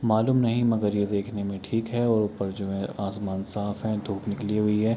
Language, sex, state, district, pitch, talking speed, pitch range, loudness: Hindi, male, Bihar, Kishanganj, 105 Hz, 240 wpm, 100-110 Hz, -27 LUFS